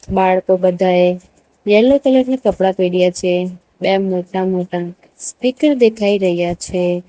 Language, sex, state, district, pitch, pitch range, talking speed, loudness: Gujarati, female, Gujarat, Valsad, 185 Hz, 180-205 Hz, 125 wpm, -15 LUFS